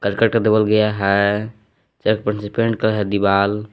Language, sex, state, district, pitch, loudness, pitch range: Hindi, male, Jharkhand, Palamu, 105 Hz, -18 LUFS, 100-110 Hz